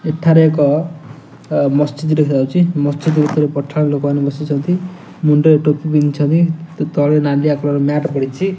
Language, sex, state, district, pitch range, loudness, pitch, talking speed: Odia, male, Odisha, Nuapada, 145-160 Hz, -15 LUFS, 150 Hz, 135 wpm